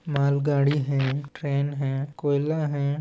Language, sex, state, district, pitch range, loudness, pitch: Chhattisgarhi, male, Chhattisgarh, Balrampur, 140-145 Hz, -25 LUFS, 140 Hz